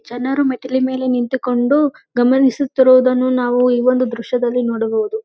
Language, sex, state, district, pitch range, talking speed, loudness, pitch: Kannada, female, Karnataka, Gulbarga, 245-260 Hz, 115 wpm, -16 LUFS, 255 Hz